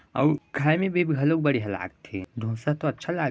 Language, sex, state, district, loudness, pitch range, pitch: Chhattisgarhi, male, Chhattisgarh, Raigarh, -26 LUFS, 115-155 Hz, 145 Hz